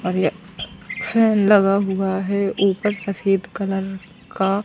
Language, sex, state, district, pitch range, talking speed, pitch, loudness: Hindi, female, Madhya Pradesh, Katni, 190-200 Hz, 130 wpm, 195 Hz, -20 LUFS